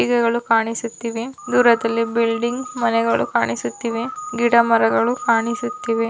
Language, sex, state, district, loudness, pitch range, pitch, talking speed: Kannada, female, Karnataka, Belgaum, -19 LUFS, 225-245 Hz, 230 Hz, 90 wpm